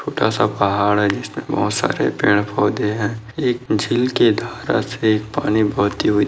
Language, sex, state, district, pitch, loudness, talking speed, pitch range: Hindi, male, Maharashtra, Dhule, 105 Hz, -19 LUFS, 170 wpm, 105-110 Hz